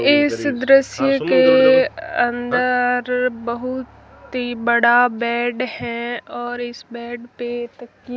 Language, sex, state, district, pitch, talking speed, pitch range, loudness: Hindi, female, Rajasthan, Jaisalmer, 245 Hz, 105 wpm, 240-260 Hz, -18 LUFS